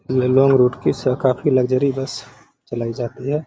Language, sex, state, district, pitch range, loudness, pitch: Hindi, female, Bihar, Gaya, 125-135 Hz, -18 LUFS, 130 Hz